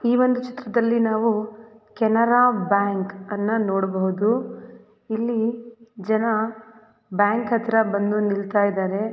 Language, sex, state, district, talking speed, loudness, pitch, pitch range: Kannada, female, Karnataka, Belgaum, 80 wpm, -22 LUFS, 220 Hz, 205-230 Hz